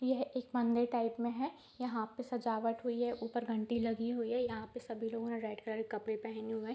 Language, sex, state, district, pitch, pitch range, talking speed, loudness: Hindi, female, Bihar, East Champaran, 235 Hz, 225-245 Hz, 240 wpm, -38 LUFS